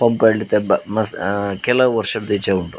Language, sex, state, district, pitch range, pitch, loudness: Tulu, male, Karnataka, Dakshina Kannada, 100-110 Hz, 105 Hz, -18 LUFS